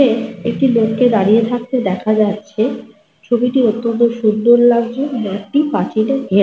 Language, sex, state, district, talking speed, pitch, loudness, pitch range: Bengali, female, Jharkhand, Sahebganj, 130 wpm, 230 Hz, -15 LUFS, 215-245 Hz